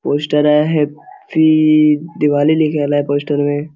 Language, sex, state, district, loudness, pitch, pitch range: Hindi, male, Jharkhand, Sahebganj, -14 LUFS, 150 Hz, 145-155 Hz